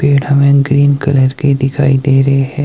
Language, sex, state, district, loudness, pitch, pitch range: Hindi, male, Himachal Pradesh, Shimla, -11 LUFS, 140 Hz, 135-140 Hz